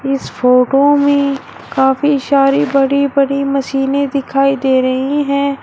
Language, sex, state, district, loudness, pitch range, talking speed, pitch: Hindi, male, Uttar Pradesh, Shamli, -13 LUFS, 270-280 Hz, 130 wpm, 275 Hz